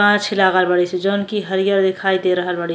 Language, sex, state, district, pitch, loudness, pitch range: Bhojpuri, female, Uttar Pradesh, Ghazipur, 190 Hz, -17 LUFS, 180-200 Hz